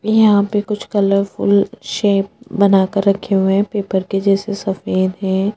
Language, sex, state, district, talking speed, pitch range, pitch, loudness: Hindi, female, Chhattisgarh, Sukma, 160 wpm, 195-205 Hz, 200 Hz, -16 LUFS